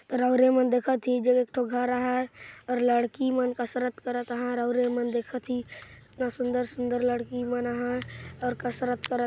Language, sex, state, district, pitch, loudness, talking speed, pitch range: Chhattisgarhi, male, Chhattisgarh, Jashpur, 245 Hz, -27 LUFS, 170 wpm, 245-250 Hz